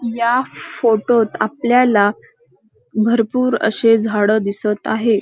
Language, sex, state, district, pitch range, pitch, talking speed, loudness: Marathi, female, Maharashtra, Dhule, 215-240 Hz, 225 Hz, 90 wpm, -16 LUFS